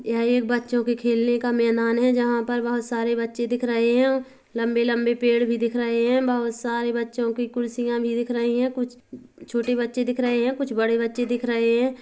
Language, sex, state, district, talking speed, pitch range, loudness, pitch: Hindi, female, Chhattisgarh, Kabirdham, 220 wpm, 235-245 Hz, -23 LUFS, 240 Hz